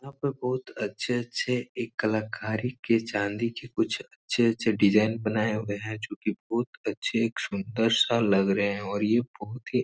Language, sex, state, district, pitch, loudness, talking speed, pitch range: Hindi, male, Uttar Pradesh, Etah, 115 Hz, -28 LUFS, 170 wpm, 105-120 Hz